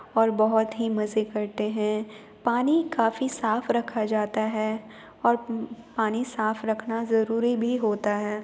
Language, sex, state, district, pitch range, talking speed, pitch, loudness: Hindi, female, Uttar Pradesh, Jalaun, 215-235 Hz, 140 wpm, 220 Hz, -26 LUFS